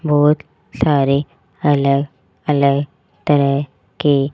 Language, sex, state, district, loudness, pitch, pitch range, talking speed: Hindi, male, Rajasthan, Jaipur, -17 LUFS, 140 Hz, 140-145 Hz, 85 wpm